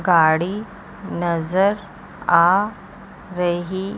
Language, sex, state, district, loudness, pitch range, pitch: Hindi, female, Chandigarh, Chandigarh, -19 LUFS, 175-200 Hz, 190 Hz